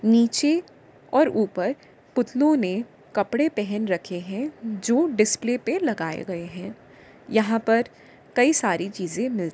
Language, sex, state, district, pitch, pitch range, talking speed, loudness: Hindi, female, Uttar Pradesh, Jyotiba Phule Nagar, 225 Hz, 195-250 Hz, 130 wpm, -24 LUFS